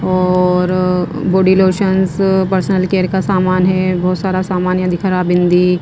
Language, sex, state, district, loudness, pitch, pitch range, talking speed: Hindi, female, Himachal Pradesh, Shimla, -14 LUFS, 185 Hz, 180-190 Hz, 165 wpm